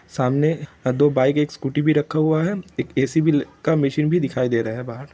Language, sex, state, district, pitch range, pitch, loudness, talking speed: Hindi, male, Bihar, Vaishali, 130-155 Hz, 145 Hz, -21 LUFS, 220 wpm